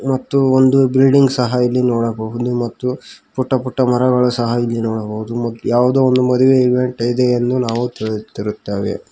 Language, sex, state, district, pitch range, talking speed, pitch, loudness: Kannada, male, Karnataka, Koppal, 115-130 Hz, 145 wpm, 125 Hz, -16 LUFS